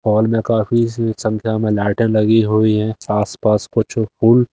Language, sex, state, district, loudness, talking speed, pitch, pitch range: Hindi, male, Delhi, New Delhi, -16 LUFS, 160 wpm, 110 Hz, 105-115 Hz